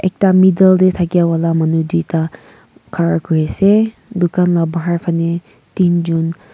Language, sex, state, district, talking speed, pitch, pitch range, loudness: Nagamese, female, Nagaland, Kohima, 145 wpm, 170 Hz, 165-185 Hz, -15 LUFS